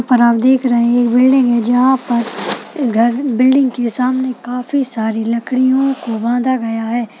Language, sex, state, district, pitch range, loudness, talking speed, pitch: Hindi, female, Chhattisgarh, Balrampur, 235-260 Hz, -14 LUFS, 175 wpm, 245 Hz